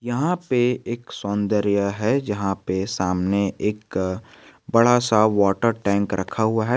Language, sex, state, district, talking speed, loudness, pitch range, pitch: Hindi, male, Jharkhand, Garhwa, 140 wpm, -22 LUFS, 100-120 Hz, 105 Hz